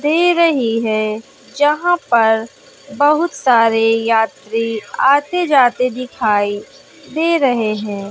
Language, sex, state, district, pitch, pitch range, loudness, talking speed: Hindi, female, Bihar, West Champaran, 250 Hz, 225-295 Hz, -15 LUFS, 105 wpm